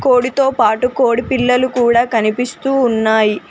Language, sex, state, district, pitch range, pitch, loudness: Telugu, female, Telangana, Mahabubabad, 230-255 Hz, 245 Hz, -14 LUFS